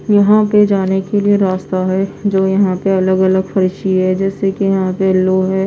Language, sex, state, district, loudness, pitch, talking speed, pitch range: Hindi, female, Odisha, Nuapada, -14 LUFS, 190 Hz, 190 wpm, 190-195 Hz